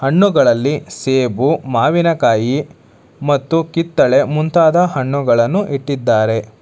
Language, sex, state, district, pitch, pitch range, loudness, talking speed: Kannada, male, Karnataka, Bangalore, 140 Hz, 125-165 Hz, -15 LUFS, 80 wpm